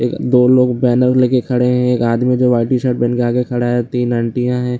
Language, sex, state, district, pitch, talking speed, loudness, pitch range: Hindi, male, Bihar, Lakhisarai, 125 Hz, 240 wpm, -14 LUFS, 120-125 Hz